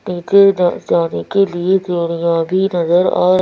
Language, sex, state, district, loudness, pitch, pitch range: Hindi, female, Madhya Pradesh, Bhopal, -14 LUFS, 180 Hz, 170-190 Hz